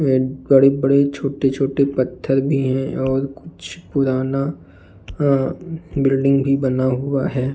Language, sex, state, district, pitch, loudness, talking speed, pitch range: Hindi, male, Uttar Pradesh, Jalaun, 135 Hz, -19 LUFS, 110 wpm, 130-140 Hz